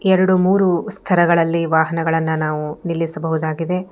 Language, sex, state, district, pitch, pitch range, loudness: Kannada, female, Karnataka, Bangalore, 165 Hz, 160-180 Hz, -18 LUFS